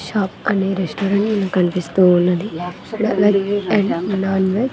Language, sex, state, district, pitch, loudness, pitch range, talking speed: Telugu, female, Andhra Pradesh, Manyam, 195 Hz, -18 LUFS, 185-205 Hz, 90 wpm